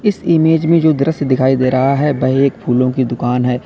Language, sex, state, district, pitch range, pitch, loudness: Hindi, male, Uttar Pradesh, Lalitpur, 130-160 Hz, 135 Hz, -14 LUFS